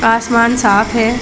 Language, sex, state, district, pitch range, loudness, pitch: Hindi, female, Chhattisgarh, Bilaspur, 225-235 Hz, -12 LUFS, 230 Hz